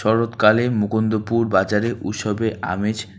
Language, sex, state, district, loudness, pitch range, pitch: Bengali, male, West Bengal, Alipurduar, -20 LUFS, 105-115 Hz, 110 Hz